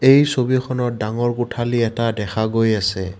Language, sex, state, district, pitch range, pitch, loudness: Assamese, male, Assam, Kamrup Metropolitan, 110-125 Hz, 120 Hz, -19 LUFS